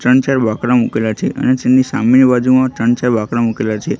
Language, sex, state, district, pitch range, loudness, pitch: Gujarati, male, Gujarat, Gandhinagar, 115-130 Hz, -14 LUFS, 125 Hz